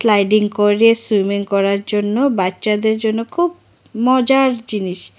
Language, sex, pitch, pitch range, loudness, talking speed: Bengali, female, 215 Hz, 200-230 Hz, -16 LUFS, 115 wpm